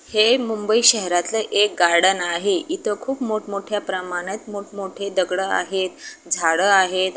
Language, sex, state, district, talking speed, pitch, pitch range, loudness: Marathi, female, Maharashtra, Aurangabad, 140 wpm, 200 Hz, 185-215 Hz, -20 LUFS